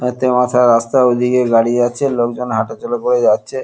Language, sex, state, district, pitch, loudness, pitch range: Bengali, male, West Bengal, Kolkata, 125 Hz, -14 LUFS, 120-125 Hz